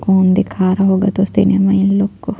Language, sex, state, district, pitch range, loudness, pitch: Hindi, female, Chhattisgarh, Jashpur, 190-200 Hz, -14 LUFS, 195 Hz